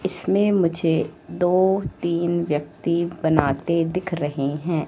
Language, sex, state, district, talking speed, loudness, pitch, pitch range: Hindi, female, Madhya Pradesh, Katni, 110 wpm, -22 LUFS, 170 Hz, 155-180 Hz